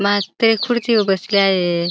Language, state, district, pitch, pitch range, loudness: Bhili, Maharashtra, Dhule, 200 Hz, 190-225 Hz, -17 LUFS